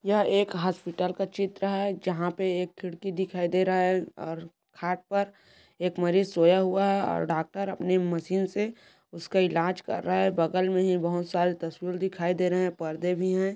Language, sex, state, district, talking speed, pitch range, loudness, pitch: Hindi, female, Chhattisgarh, Korba, 195 wpm, 175-190 Hz, -27 LUFS, 185 Hz